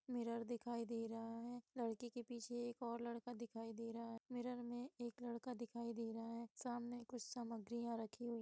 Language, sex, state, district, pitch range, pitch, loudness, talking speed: Hindi, female, Bihar, Sitamarhi, 230-240 Hz, 235 Hz, -49 LUFS, 205 wpm